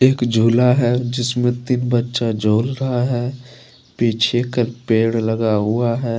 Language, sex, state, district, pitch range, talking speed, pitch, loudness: Hindi, male, Jharkhand, Deoghar, 115-125 Hz, 135 wpm, 120 Hz, -18 LUFS